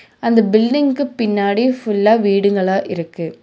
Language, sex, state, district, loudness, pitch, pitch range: Tamil, female, Tamil Nadu, Nilgiris, -16 LUFS, 210 Hz, 195-230 Hz